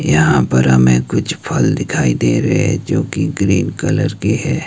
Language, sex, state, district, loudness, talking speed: Hindi, male, Himachal Pradesh, Shimla, -15 LUFS, 195 wpm